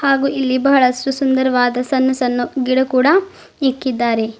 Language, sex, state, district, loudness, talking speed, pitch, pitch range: Kannada, female, Karnataka, Bidar, -16 LUFS, 120 wpm, 260 Hz, 250-275 Hz